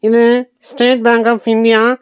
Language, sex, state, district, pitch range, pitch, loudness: Tamil, male, Tamil Nadu, Nilgiris, 230-245 Hz, 235 Hz, -12 LUFS